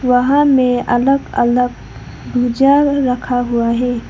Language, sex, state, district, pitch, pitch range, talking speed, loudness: Hindi, female, Arunachal Pradesh, Lower Dibang Valley, 250 Hz, 245-270 Hz, 115 wpm, -14 LUFS